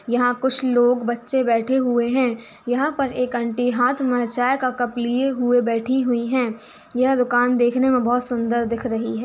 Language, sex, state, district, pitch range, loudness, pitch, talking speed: Hindi, female, Uttar Pradesh, Etah, 240-255 Hz, -20 LUFS, 245 Hz, 200 wpm